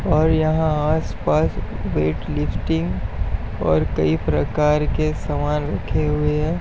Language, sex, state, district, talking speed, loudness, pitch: Hindi, male, Uttar Pradesh, Jyotiba Phule Nagar, 110 wpm, -21 LUFS, 105 Hz